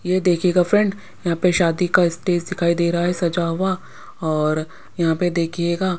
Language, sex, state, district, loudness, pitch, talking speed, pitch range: Hindi, female, Punjab, Pathankot, -20 LUFS, 175 Hz, 190 wpm, 170-180 Hz